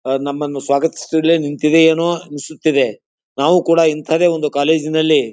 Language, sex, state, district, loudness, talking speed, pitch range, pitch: Kannada, male, Karnataka, Bijapur, -15 LUFS, 135 wpm, 145-165 Hz, 155 Hz